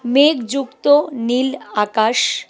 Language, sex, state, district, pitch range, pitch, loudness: Bengali, female, West Bengal, Cooch Behar, 235-275 Hz, 255 Hz, -17 LUFS